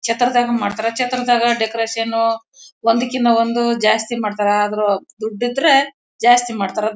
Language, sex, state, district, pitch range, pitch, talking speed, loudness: Kannada, female, Karnataka, Bellary, 220-245 Hz, 230 Hz, 105 wpm, -17 LUFS